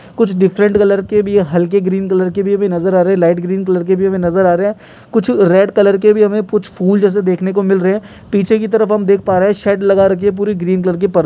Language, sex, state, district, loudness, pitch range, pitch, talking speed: Hindi, male, Uttarakhand, Uttarkashi, -13 LUFS, 185-205 Hz, 200 Hz, 310 wpm